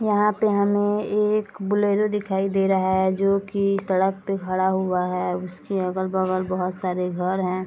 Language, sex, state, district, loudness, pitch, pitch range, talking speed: Hindi, female, Bihar, Sitamarhi, -23 LUFS, 190 Hz, 185-205 Hz, 170 wpm